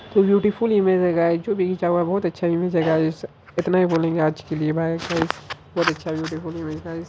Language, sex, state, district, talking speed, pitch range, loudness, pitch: Angika, female, Bihar, Araria, 235 wpm, 160-180 Hz, -22 LUFS, 170 Hz